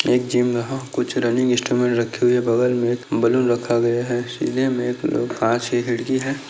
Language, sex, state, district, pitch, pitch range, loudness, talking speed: Hindi, male, Chhattisgarh, Bastar, 125 Hz, 120-125 Hz, -20 LUFS, 205 wpm